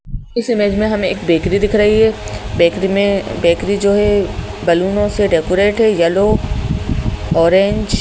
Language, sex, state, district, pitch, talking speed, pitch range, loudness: Hindi, male, Madhya Pradesh, Bhopal, 200 Hz, 150 wpm, 170-205 Hz, -15 LUFS